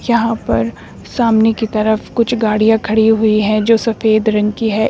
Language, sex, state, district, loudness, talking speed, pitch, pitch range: Hindi, female, Uttar Pradesh, Shamli, -14 LUFS, 185 wpm, 220 Hz, 215-225 Hz